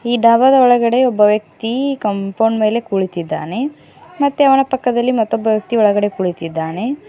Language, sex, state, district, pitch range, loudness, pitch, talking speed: Kannada, female, Karnataka, Koppal, 205-255 Hz, -15 LUFS, 225 Hz, 125 wpm